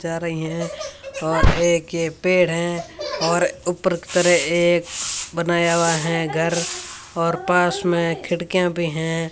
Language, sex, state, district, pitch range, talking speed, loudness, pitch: Hindi, female, Rajasthan, Bikaner, 165-180 Hz, 150 wpm, -20 LUFS, 170 Hz